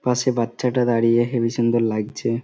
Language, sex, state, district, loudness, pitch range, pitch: Bengali, male, West Bengal, Kolkata, -20 LUFS, 115-125 Hz, 120 Hz